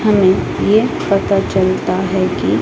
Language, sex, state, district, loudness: Hindi, female, Odisha, Malkangiri, -15 LUFS